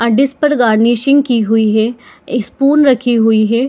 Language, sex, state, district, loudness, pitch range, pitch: Hindi, female, Jharkhand, Jamtara, -12 LUFS, 225-275 Hz, 240 Hz